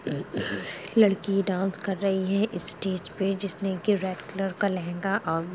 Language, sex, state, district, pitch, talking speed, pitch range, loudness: Hindi, female, Chhattisgarh, Rajnandgaon, 195 Hz, 150 wpm, 185-195 Hz, -26 LUFS